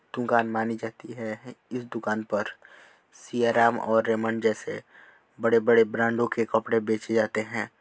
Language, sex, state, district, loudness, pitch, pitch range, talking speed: Hindi, male, Uttar Pradesh, Deoria, -26 LUFS, 115 Hz, 110-115 Hz, 145 wpm